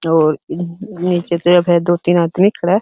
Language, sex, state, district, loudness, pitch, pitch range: Hindi, male, Uttar Pradesh, Hamirpur, -15 LUFS, 175 Hz, 170-180 Hz